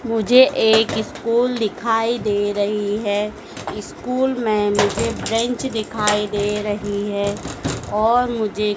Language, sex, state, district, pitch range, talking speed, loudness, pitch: Hindi, female, Madhya Pradesh, Dhar, 205-230 Hz, 115 wpm, -19 LUFS, 215 Hz